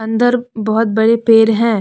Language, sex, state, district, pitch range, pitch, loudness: Hindi, female, Jharkhand, Deoghar, 220-230 Hz, 225 Hz, -13 LUFS